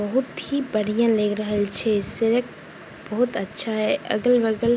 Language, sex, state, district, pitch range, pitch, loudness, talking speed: Maithili, female, Bihar, Begusarai, 210-240 Hz, 220 Hz, -22 LUFS, 165 wpm